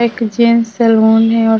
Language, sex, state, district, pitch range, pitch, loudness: Hindi, female, Bihar, Vaishali, 225-235 Hz, 225 Hz, -11 LUFS